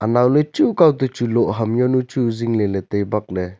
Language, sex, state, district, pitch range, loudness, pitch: Wancho, male, Arunachal Pradesh, Longding, 105-125 Hz, -18 LUFS, 115 Hz